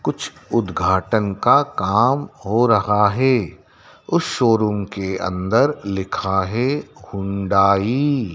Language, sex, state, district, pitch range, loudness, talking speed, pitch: Hindi, male, Madhya Pradesh, Dhar, 95-120 Hz, -19 LUFS, 110 wpm, 100 Hz